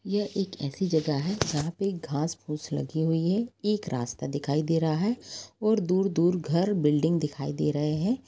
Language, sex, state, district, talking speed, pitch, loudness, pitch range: Hindi, female, Jharkhand, Jamtara, 195 wpm, 165 Hz, -28 LUFS, 150-195 Hz